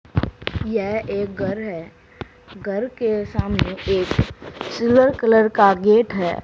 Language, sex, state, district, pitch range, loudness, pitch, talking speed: Hindi, female, Haryana, Charkhi Dadri, 190-225 Hz, -20 LUFS, 205 Hz, 120 wpm